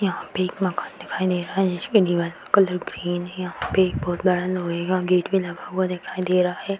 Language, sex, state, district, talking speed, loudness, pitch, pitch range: Hindi, female, Bihar, Purnia, 255 wpm, -23 LUFS, 180 Hz, 175-190 Hz